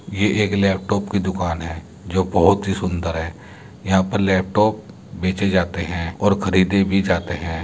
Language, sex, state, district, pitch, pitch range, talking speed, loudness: Hindi, male, Uttar Pradesh, Muzaffarnagar, 95 Hz, 85-100 Hz, 175 wpm, -20 LUFS